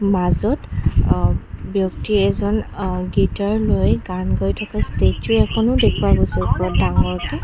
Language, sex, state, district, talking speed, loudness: Assamese, female, Assam, Kamrup Metropolitan, 135 wpm, -19 LUFS